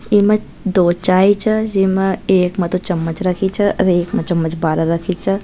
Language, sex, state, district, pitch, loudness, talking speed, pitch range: Marwari, female, Rajasthan, Nagaur, 190 Hz, -16 LUFS, 185 wpm, 175-200 Hz